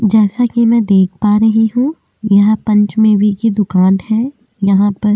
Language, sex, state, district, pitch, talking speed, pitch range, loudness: Hindi, female, Delhi, New Delhi, 215 Hz, 160 wpm, 205-225 Hz, -12 LUFS